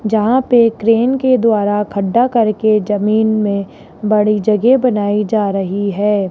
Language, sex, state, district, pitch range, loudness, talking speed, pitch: Hindi, male, Rajasthan, Jaipur, 205-230 Hz, -14 LUFS, 140 wpm, 215 Hz